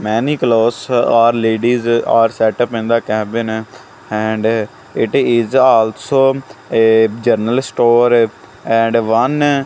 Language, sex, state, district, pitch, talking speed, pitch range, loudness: English, male, Punjab, Kapurthala, 115 Hz, 120 wpm, 110-120 Hz, -14 LUFS